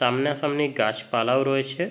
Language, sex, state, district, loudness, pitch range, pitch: Bengali, male, West Bengal, Jhargram, -24 LUFS, 120-145 Hz, 135 Hz